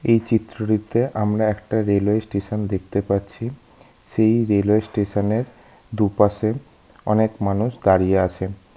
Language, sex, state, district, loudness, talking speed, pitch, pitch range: Bengali, male, West Bengal, North 24 Parganas, -21 LUFS, 115 wpm, 105 Hz, 100-110 Hz